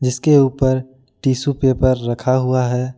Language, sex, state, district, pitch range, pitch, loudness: Hindi, male, Jharkhand, Ranchi, 125-130 Hz, 130 Hz, -17 LUFS